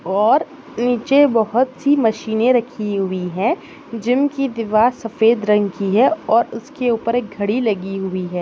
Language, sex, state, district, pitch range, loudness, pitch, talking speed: Hindi, female, Maharashtra, Nagpur, 210-255 Hz, -18 LUFS, 230 Hz, 165 wpm